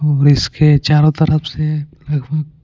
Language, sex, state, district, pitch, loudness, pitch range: Hindi, male, Punjab, Pathankot, 150 Hz, -14 LUFS, 145-155 Hz